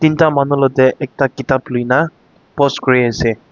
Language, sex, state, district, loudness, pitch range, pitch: Nagamese, male, Nagaland, Dimapur, -15 LUFS, 130-140 Hz, 135 Hz